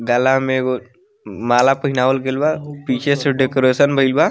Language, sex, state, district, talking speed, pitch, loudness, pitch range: Bhojpuri, male, Bihar, Muzaffarpur, 165 wpm, 135 Hz, -17 LUFS, 130-140 Hz